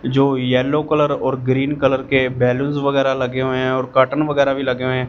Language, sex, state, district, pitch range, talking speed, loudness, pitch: Hindi, male, Punjab, Fazilka, 130-140 Hz, 225 wpm, -18 LUFS, 130 Hz